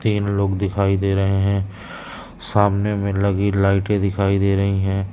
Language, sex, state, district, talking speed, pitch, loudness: Hindi, male, Madhya Pradesh, Katni, 165 wpm, 100 Hz, -19 LUFS